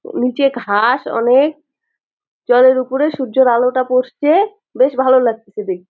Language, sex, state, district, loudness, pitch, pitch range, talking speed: Bengali, female, West Bengal, Jalpaiguri, -15 LUFS, 260 Hz, 245-280 Hz, 130 wpm